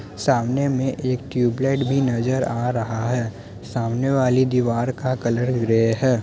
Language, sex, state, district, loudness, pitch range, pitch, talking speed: Hindi, male, Bihar, Muzaffarpur, -21 LUFS, 115-130 Hz, 125 Hz, 155 wpm